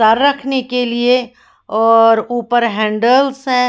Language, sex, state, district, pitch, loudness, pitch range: Hindi, female, Haryana, Jhajjar, 245 Hz, -14 LUFS, 225-260 Hz